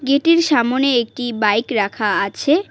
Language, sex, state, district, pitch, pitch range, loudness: Bengali, female, West Bengal, Cooch Behar, 245 Hz, 215-280 Hz, -17 LUFS